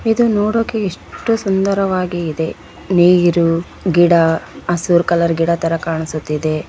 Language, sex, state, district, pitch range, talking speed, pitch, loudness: Kannada, female, Karnataka, Bellary, 165-195 Hz, 110 wpm, 175 Hz, -16 LUFS